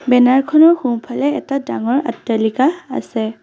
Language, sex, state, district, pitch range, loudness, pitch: Assamese, female, Assam, Sonitpur, 235-285 Hz, -16 LUFS, 260 Hz